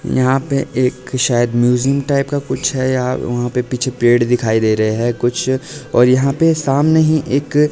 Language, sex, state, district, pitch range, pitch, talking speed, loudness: Hindi, male, Himachal Pradesh, Shimla, 120-140 Hz, 130 Hz, 195 wpm, -15 LUFS